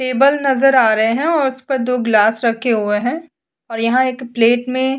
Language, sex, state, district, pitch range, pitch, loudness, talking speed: Hindi, female, Chhattisgarh, Sukma, 230-265 Hz, 250 Hz, -15 LUFS, 230 wpm